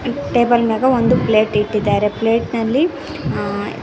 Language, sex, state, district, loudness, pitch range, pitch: Kannada, female, Karnataka, Koppal, -17 LUFS, 215-245 Hz, 230 Hz